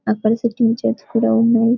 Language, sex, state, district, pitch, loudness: Telugu, female, Telangana, Karimnagar, 225 Hz, -17 LUFS